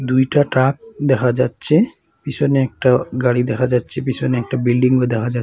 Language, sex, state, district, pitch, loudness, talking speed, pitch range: Bengali, male, Assam, Hailakandi, 130 Hz, -17 LUFS, 155 wpm, 125-140 Hz